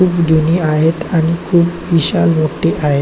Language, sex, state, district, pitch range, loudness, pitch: Marathi, male, Maharashtra, Chandrapur, 155-175 Hz, -13 LUFS, 165 Hz